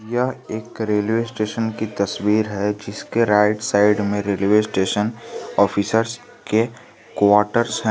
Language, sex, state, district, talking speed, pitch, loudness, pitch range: Hindi, male, Jharkhand, Garhwa, 130 wpm, 105 Hz, -20 LUFS, 105-115 Hz